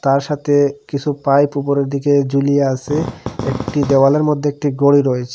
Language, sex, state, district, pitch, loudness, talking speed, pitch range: Bengali, male, Assam, Hailakandi, 140 Hz, -16 LUFS, 155 wpm, 135-145 Hz